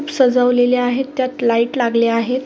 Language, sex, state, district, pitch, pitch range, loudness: Marathi, female, Maharashtra, Sindhudurg, 250 Hz, 235-260 Hz, -16 LUFS